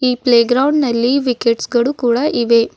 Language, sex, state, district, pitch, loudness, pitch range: Kannada, female, Karnataka, Bidar, 245 Hz, -14 LUFS, 235-260 Hz